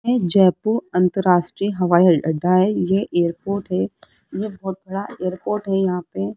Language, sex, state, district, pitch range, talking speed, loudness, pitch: Hindi, female, Rajasthan, Jaipur, 175-200 Hz, 150 wpm, -20 LUFS, 185 Hz